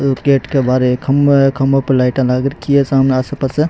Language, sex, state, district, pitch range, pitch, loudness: Rajasthani, male, Rajasthan, Churu, 130-140 Hz, 135 Hz, -14 LUFS